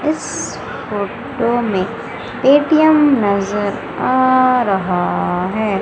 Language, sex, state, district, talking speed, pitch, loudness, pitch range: Hindi, female, Madhya Pradesh, Umaria, 80 wpm, 225 Hz, -16 LUFS, 195-265 Hz